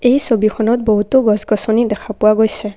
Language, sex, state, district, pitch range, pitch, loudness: Assamese, female, Assam, Kamrup Metropolitan, 215-235 Hz, 220 Hz, -14 LUFS